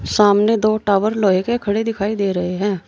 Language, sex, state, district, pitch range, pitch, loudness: Hindi, female, Uttar Pradesh, Saharanpur, 195-215 Hz, 205 Hz, -17 LUFS